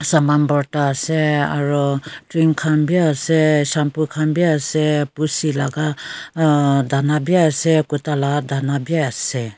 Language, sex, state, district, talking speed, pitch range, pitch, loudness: Nagamese, female, Nagaland, Kohima, 145 wpm, 145-155 Hz, 150 Hz, -18 LUFS